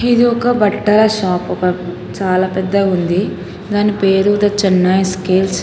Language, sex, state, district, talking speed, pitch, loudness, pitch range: Telugu, female, Telangana, Hyderabad, 140 wpm, 195 Hz, -14 LUFS, 185-210 Hz